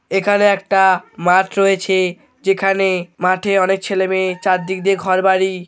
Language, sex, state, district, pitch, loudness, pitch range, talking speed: Bengali, male, West Bengal, North 24 Parganas, 190 Hz, -16 LUFS, 185-195 Hz, 135 wpm